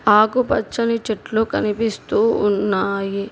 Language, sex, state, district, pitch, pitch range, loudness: Telugu, female, Telangana, Hyderabad, 220 Hz, 205-230 Hz, -19 LUFS